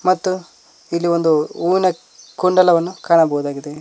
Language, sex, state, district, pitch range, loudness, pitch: Kannada, male, Karnataka, Koppal, 155-185 Hz, -17 LUFS, 170 Hz